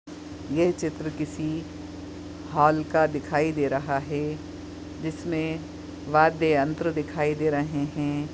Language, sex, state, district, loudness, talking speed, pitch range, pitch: Hindi, female, Goa, North and South Goa, -26 LUFS, 115 wpm, 145-155 Hz, 150 Hz